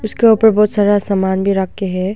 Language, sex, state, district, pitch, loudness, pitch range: Hindi, female, Arunachal Pradesh, Longding, 205 Hz, -14 LUFS, 190-210 Hz